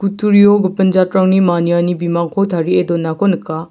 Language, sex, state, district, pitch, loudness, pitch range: Garo, male, Meghalaya, South Garo Hills, 185 Hz, -14 LUFS, 170-195 Hz